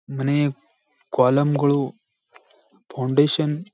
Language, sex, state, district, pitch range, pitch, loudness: Kannada, male, Karnataka, Bijapur, 135-145 Hz, 145 Hz, -21 LUFS